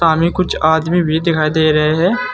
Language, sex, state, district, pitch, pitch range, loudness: Hindi, male, Uttar Pradesh, Saharanpur, 160 Hz, 160-175 Hz, -14 LUFS